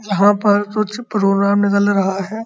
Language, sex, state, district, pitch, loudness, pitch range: Hindi, male, Uttar Pradesh, Muzaffarnagar, 205 Hz, -16 LUFS, 200-215 Hz